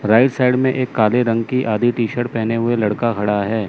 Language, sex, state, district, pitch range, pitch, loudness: Hindi, male, Chandigarh, Chandigarh, 110-125 Hz, 115 Hz, -17 LUFS